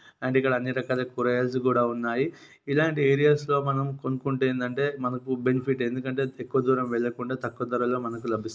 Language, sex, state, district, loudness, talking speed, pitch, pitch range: Telugu, male, Telangana, Nalgonda, -26 LUFS, 160 wpm, 130 Hz, 125-135 Hz